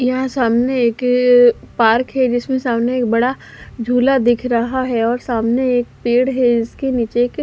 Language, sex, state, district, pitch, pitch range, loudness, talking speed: Hindi, female, Punjab, Fazilka, 245 Hz, 235-255 Hz, -16 LUFS, 170 wpm